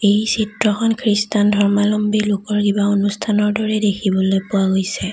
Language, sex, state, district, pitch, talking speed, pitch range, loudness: Assamese, female, Assam, Kamrup Metropolitan, 205 Hz, 130 wpm, 200-215 Hz, -17 LUFS